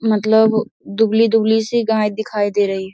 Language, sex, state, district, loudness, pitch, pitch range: Hindi, female, Bihar, Darbhanga, -16 LUFS, 220 Hz, 210-220 Hz